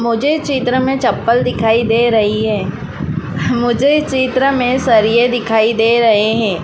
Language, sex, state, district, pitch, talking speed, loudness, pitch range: Hindi, female, Madhya Pradesh, Dhar, 230 Hz, 145 wpm, -14 LUFS, 215-255 Hz